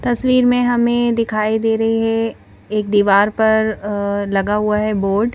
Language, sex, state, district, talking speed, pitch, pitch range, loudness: Hindi, female, Madhya Pradesh, Bhopal, 180 wpm, 220 Hz, 210-230 Hz, -16 LUFS